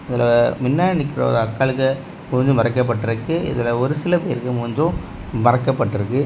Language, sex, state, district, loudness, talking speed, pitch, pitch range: Tamil, male, Tamil Nadu, Kanyakumari, -19 LUFS, 125 wpm, 125 Hz, 120-140 Hz